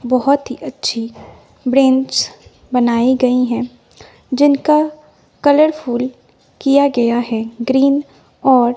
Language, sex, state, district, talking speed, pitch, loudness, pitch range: Hindi, female, Bihar, West Champaran, 95 wpm, 260 Hz, -15 LUFS, 245-280 Hz